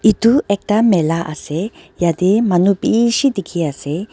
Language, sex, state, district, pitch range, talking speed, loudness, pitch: Nagamese, female, Nagaland, Dimapur, 170-225 Hz, 130 wpm, -16 LUFS, 195 Hz